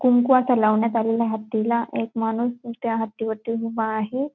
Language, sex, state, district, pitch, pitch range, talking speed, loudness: Marathi, female, Maharashtra, Dhule, 230 Hz, 225-240 Hz, 180 wpm, -23 LUFS